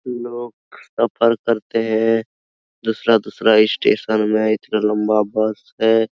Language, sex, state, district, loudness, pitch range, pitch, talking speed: Hindi, male, Bihar, Araria, -18 LUFS, 110-115 Hz, 110 Hz, 125 wpm